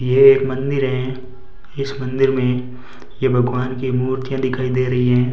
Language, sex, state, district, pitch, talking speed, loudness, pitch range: Hindi, male, Rajasthan, Bikaner, 130 Hz, 170 wpm, -18 LUFS, 125-135 Hz